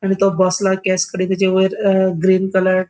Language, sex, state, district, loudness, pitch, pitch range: Konkani, male, Goa, North and South Goa, -16 LUFS, 190 Hz, 185-190 Hz